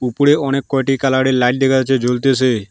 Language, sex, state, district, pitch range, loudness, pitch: Bengali, male, West Bengal, Alipurduar, 125-135 Hz, -15 LUFS, 135 Hz